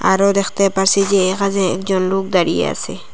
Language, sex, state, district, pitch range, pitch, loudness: Bengali, female, Assam, Hailakandi, 190-200 Hz, 195 Hz, -16 LUFS